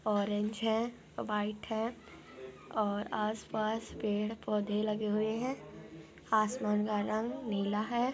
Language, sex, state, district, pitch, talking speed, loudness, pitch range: Hindi, female, Andhra Pradesh, Anantapur, 215 Hz, 170 wpm, -34 LUFS, 210-225 Hz